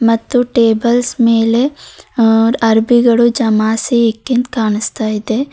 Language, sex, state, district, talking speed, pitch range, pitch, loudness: Kannada, female, Karnataka, Bidar, 100 wpm, 225-245 Hz, 230 Hz, -13 LUFS